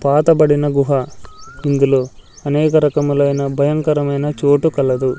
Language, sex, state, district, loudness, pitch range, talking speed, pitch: Telugu, male, Andhra Pradesh, Sri Satya Sai, -15 LUFS, 140-150 Hz, 105 wpm, 145 Hz